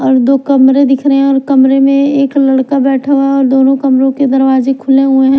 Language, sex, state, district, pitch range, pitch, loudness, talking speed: Hindi, female, Bihar, Katihar, 265-275 Hz, 270 Hz, -9 LUFS, 245 wpm